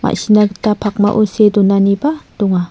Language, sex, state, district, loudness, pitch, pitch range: Garo, female, Meghalaya, South Garo Hills, -13 LUFS, 205 Hz, 200-210 Hz